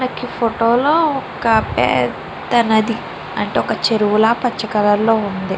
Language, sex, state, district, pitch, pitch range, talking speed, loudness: Telugu, female, Andhra Pradesh, Chittoor, 225 Hz, 210-235 Hz, 130 wpm, -16 LUFS